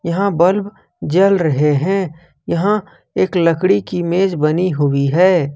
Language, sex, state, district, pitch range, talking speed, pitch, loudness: Hindi, male, Jharkhand, Ranchi, 160-190 Hz, 140 wpm, 175 Hz, -16 LUFS